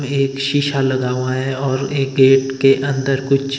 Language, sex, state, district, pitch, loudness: Hindi, male, Himachal Pradesh, Shimla, 135 Hz, -17 LUFS